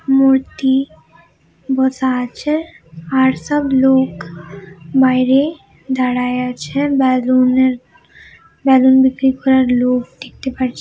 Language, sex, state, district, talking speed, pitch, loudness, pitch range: Bengali, female, West Bengal, Malda, 95 wpm, 260 Hz, -15 LUFS, 250-265 Hz